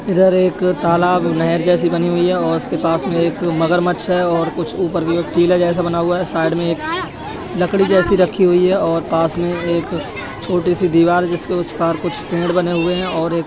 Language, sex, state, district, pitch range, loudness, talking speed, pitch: Hindi, male, Uttar Pradesh, Etah, 170-180 Hz, -16 LUFS, 220 wpm, 175 Hz